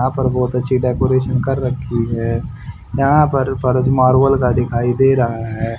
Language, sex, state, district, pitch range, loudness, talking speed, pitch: Hindi, male, Haryana, Charkhi Dadri, 120-130 Hz, -16 LUFS, 165 wpm, 125 Hz